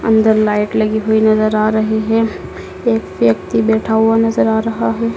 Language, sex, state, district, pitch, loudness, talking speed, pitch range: Hindi, female, Madhya Pradesh, Dhar, 220 Hz, -14 LUFS, 185 wpm, 215-225 Hz